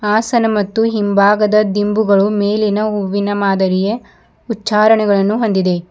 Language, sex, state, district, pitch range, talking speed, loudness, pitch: Kannada, female, Karnataka, Bidar, 200-215 Hz, 90 wpm, -14 LUFS, 210 Hz